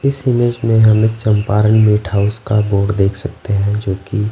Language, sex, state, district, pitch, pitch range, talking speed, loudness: Hindi, male, Bihar, West Champaran, 105 Hz, 100-110 Hz, 180 wpm, -14 LUFS